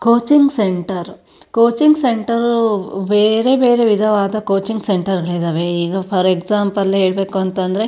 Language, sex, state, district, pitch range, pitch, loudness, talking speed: Kannada, female, Karnataka, Shimoga, 190-230 Hz, 205 Hz, -15 LUFS, 105 wpm